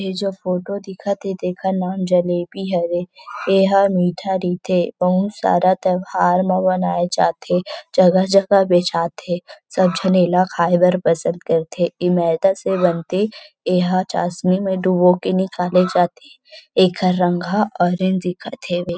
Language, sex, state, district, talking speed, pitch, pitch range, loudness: Chhattisgarhi, female, Chhattisgarh, Rajnandgaon, 150 wpm, 185 Hz, 180-190 Hz, -18 LUFS